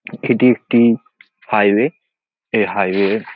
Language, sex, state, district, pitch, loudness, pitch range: Bengali, male, West Bengal, North 24 Parganas, 115 Hz, -16 LUFS, 100-125 Hz